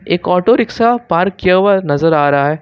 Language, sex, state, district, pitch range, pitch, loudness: Hindi, male, Jharkhand, Ranchi, 155-200 Hz, 180 Hz, -13 LUFS